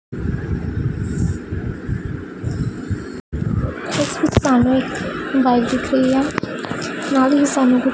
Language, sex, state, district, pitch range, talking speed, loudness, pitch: Punjabi, female, Punjab, Pathankot, 255-270 Hz, 90 wpm, -20 LUFS, 265 Hz